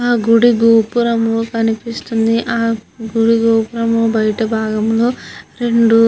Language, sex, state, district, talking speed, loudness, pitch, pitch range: Telugu, female, Andhra Pradesh, Guntur, 110 wpm, -15 LUFS, 230 Hz, 225-230 Hz